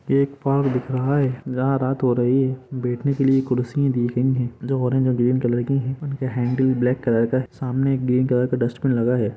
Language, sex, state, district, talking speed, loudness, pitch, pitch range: Hindi, male, Jharkhand, Jamtara, 245 wpm, -21 LUFS, 130 Hz, 125-135 Hz